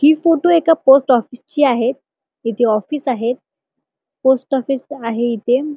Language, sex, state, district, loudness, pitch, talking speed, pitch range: Marathi, male, Maharashtra, Chandrapur, -16 LUFS, 265 Hz, 145 wpm, 240-295 Hz